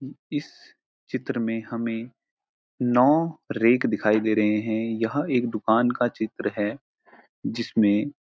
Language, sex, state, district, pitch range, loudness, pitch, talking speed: Hindi, male, Uttarakhand, Uttarkashi, 110-125 Hz, -24 LUFS, 115 Hz, 130 wpm